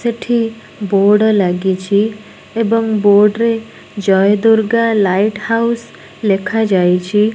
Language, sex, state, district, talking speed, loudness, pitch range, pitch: Odia, female, Odisha, Nuapada, 90 wpm, -14 LUFS, 200-225 Hz, 215 Hz